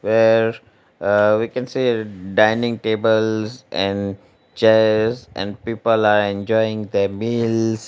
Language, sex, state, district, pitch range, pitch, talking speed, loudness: English, male, Gujarat, Valsad, 105-115 Hz, 110 Hz, 115 wpm, -19 LUFS